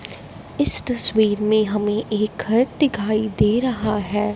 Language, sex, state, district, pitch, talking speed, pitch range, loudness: Hindi, female, Punjab, Fazilka, 215 Hz, 140 wpm, 210-220 Hz, -18 LUFS